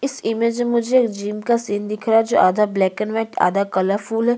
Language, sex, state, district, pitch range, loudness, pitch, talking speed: Hindi, female, Chhattisgarh, Korba, 205-235 Hz, -19 LUFS, 225 Hz, 285 wpm